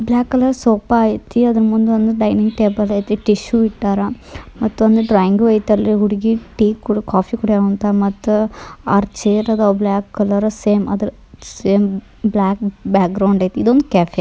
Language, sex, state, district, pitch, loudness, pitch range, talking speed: Kannada, male, Karnataka, Dharwad, 210 Hz, -16 LUFS, 200-225 Hz, 145 wpm